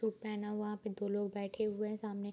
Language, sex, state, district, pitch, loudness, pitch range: Hindi, female, Bihar, Bhagalpur, 210 Hz, -39 LUFS, 205-215 Hz